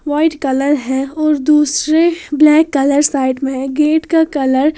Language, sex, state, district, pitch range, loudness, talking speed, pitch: Hindi, female, Haryana, Jhajjar, 275-310 Hz, -14 LUFS, 175 wpm, 295 Hz